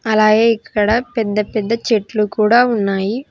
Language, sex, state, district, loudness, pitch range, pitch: Telugu, female, Telangana, Hyderabad, -16 LUFS, 210-230 Hz, 220 Hz